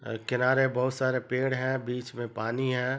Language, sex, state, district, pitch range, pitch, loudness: Hindi, male, Jharkhand, Sahebganj, 125-130 Hz, 125 Hz, -29 LUFS